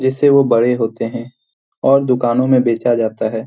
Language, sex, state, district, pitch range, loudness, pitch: Hindi, male, Bihar, Jamui, 115-130 Hz, -15 LUFS, 120 Hz